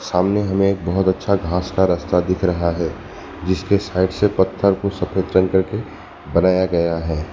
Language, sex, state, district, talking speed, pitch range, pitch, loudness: Hindi, male, West Bengal, Alipurduar, 180 wpm, 90-100 Hz, 95 Hz, -19 LUFS